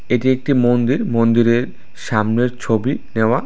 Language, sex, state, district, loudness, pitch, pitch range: Bengali, male, Tripura, West Tripura, -17 LUFS, 120 Hz, 115-130 Hz